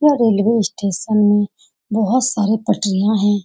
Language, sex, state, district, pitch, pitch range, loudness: Hindi, female, Bihar, Saran, 210 Hz, 205-225 Hz, -17 LUFS